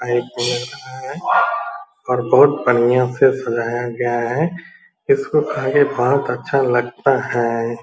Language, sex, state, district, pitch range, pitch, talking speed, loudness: Hindi, female, Bihar, Purnia, 120-145 Hz, 125 Hz, 120 wpm, -18 LUFS